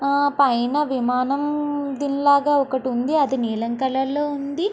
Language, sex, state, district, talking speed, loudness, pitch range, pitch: Telugu, female, Andhra Pradesh, Guntur, 140 wpm, -21 LUFS, 260-290 Hz, 280 Hz